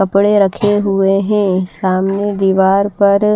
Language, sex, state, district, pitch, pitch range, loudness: Hindi, female, Himachal Pradesh, Shimla, 195 Hz, 190-205 Hz, -13 LUFS